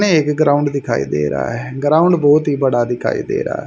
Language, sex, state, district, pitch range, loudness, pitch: Hindi, male, Haryana, Rohtak, 120-150 Hz, -16 LUFS, 145 Hz